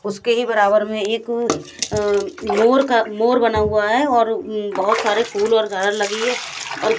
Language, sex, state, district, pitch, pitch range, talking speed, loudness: Hindi, female, Haryana, Jhajjar, 220 Hz, 205-230 Hz, 170 wpm, -18 LUFS